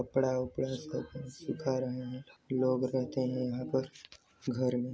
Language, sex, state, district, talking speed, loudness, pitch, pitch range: Hindi, male, Chhattisgarh, Sarguja, 155 wpm, -34 LUFS, 130 Hz, 125-130 Hz